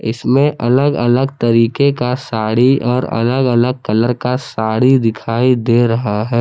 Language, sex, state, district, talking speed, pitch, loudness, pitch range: Hindi, male, Jharkhand, Palamu, 150 wpm, 120 Hz, -14 LUFS, 115-130 Hz